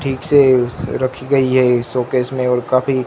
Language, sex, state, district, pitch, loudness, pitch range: Hindi, male, Gujarat, Gandhinagar, 130 Hz, -16 LUFS, 125-135 Hz